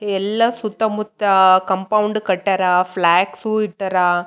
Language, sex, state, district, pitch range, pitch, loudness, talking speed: Kannada, female, Karnataka, Raichur, 185-215 Hz, 195 Hz, -17 LUFS, 185 wpm